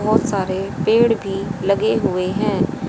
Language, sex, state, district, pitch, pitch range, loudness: Hindi, female, Haryana, Jhajjar, 195 Hz, 190-215 Hz, -19 LUFS